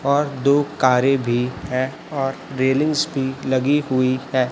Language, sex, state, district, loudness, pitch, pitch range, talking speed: Hindi, male, Chhattisgarh, Raipur, -20 LUFS, 135 Hz, 130-140 Hz, 145 wpm